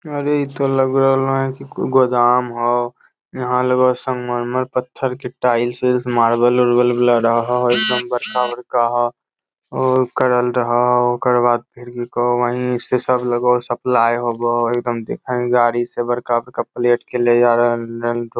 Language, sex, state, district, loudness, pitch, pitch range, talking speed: Magahi, male, Bihar, Lakhisarai, -17 LUFS, 120 Hz, 120-125 Hz, 175 wpm